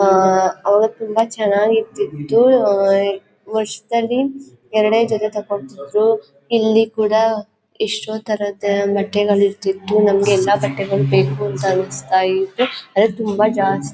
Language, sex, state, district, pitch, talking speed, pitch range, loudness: Kannada, female, Karnataka, Chamarajanagar, 205 Hz, 90 wpm, 195-220 Hz, -17 LUFS